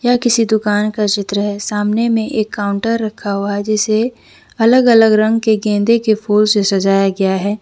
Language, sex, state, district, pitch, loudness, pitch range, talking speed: Hindi, female, Jharkhand, Deoghar, 215 Hz, -14 LUFS, 205-225 Hz, 195 wpm